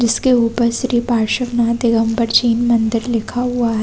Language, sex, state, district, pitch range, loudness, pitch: Hindi, female, Chhattisgarh, Balrampur, 230-240 Hz, -16 LUFS, 235 Hz